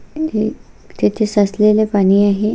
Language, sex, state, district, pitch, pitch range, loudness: Marathi, female, Maharashtra, Solapur, 210 Hz, 205-215 Hz, -15 LUFS